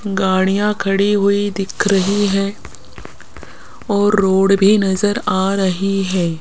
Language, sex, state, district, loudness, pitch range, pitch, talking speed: Hindi, female, Rajasthan, Jaipur, -16 LUFS, 190-205 Hz, 195 Hz, 120 wpm